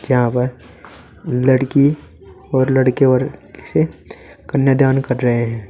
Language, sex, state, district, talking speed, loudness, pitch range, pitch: Hindi, male, Uttar Pradesh, Saharanpur, 115 wpm, -16 LUFS, 120-135 Hz, 130 Hz